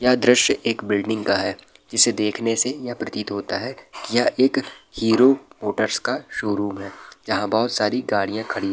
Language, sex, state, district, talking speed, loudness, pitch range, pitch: Hindi, male, Bihar, Araria, 185 wpm, -21 LUFS, 105-125 Hz, 110 Hz